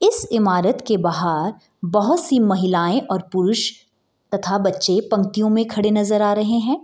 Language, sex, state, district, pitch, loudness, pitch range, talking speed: Hindi, female, Bihar, Gopalganj, 210 Hz, -19 LUFS, 190-225 Hz, 165 wpm